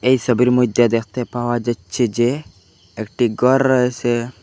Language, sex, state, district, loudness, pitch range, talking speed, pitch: Bengali, male, Assam, Hailakandi, -18 LUFS, 115-125 Hz, 135 wpm, 120 Hz